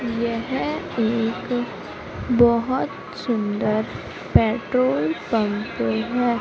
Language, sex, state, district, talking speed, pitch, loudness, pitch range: Hindi, female, Madhya Pradesh, Umaria, 65 wpm, 230 Hz, -22 LUFS, 210-240 Hz